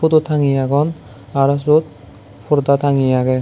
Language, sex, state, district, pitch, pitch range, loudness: Chakma, male, Tripura, West Tripura, 140 Hz, 130-150 Hz, -16 LUFS